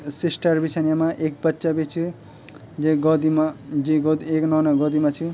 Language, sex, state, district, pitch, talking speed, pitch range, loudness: Garhwali, male, Uttarakhand, Tehri Garhwal, 155 Hz, 200 wpm, 150-160 Hz, -21 LUFS